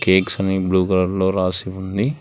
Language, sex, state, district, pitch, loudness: Telugu, male, Telangana, Hyderabad, 95 Hz, -19 LUFS